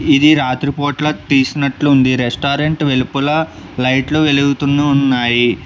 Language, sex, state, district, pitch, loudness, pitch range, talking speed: Telugu, male, Telangana, Hyderabad, 140 Hz, -14 LUFS, 130-145 Hz, 85 wpm